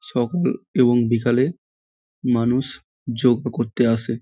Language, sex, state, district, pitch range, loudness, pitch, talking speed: Bengali, male, West Bengal, Paschim Medinipur, 115-125 Hz, -21 LUFS, 120 Hz, 100 wpm